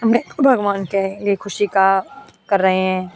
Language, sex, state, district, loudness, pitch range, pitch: Hindi, female, Uttar Pradesh, Etah, -18 LUFS, 190-220 Hz, 200 Hz